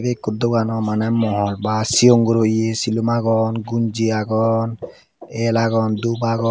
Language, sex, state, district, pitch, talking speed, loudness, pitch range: Chakma, male, Tripura, Dhalai, 115 Hz, 145 wpm, -18 LUFS, 110-115 Hz